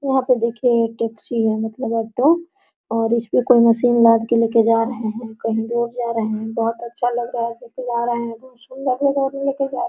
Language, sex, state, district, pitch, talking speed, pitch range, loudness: Hindi, female, Bihar, Araria, 235 Hz, 245 wpm, 230-255 Hz, -19 LUFS